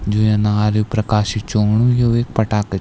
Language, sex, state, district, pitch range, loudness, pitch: Garhwali, male, Uttarakhand, Tehri Garhwal, 105-110 Hz, -17 LUFS, 105 Hz